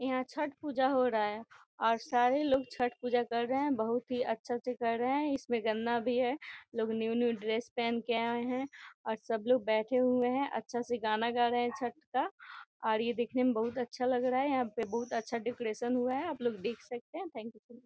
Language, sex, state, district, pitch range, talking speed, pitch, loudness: Hindi, female, Bihar, Gopalganj, 230-255 Hz, 240 wpm, 240 Hz, -33 LUFS